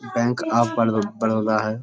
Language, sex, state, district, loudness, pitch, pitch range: Hindi, male, Uttar Pradesh, Budaun, -21 LUFS, 110 Hz, 110-120 Hz